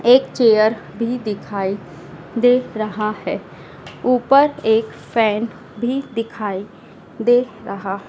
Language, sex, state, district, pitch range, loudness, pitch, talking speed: Hindi, female, Madhya Pradesh, Dhar, 205-245 Hz, -19 LUFS, 220 Hz, 105 wpm